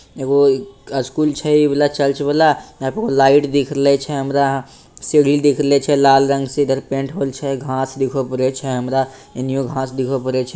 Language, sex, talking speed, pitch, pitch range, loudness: Bhojpuri, male, 180 wpm, 135 Hz, 135-145 Hz, -17 LUFS